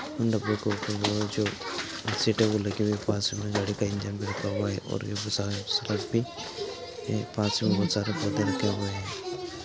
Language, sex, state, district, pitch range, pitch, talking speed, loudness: Hindi, male, Andhra Pradesh, Anantapur, 100-105 Hz, 105 Hz, 185 wpm, -29 LUFS